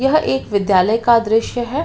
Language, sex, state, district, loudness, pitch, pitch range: Hindi, female, Uttar Pradesh, Ghazipur, -16 LUFS, 225 Hz, 200-240 Hz